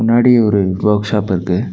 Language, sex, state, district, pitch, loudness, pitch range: Tamil, male, Tamil Nadu, Nilgiris, 105 Hz, -14 LUFS, 95-115 Hz